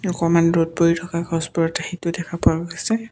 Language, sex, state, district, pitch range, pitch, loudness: Assamese, male, Assam, Kamrup Metropolitan, 165-170 Hz, 170 Hz, -21 LUFS